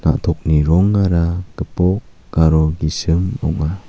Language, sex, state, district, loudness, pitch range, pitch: Garo, male, Meghalaya, South Garo Hills, -17 LUFS, 80-95 Hz, 85 Hz